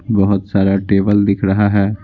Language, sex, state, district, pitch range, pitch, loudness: Hindi, male, Bihar, Patna, 100-105 Hz, 100 Hz, -14 LUFS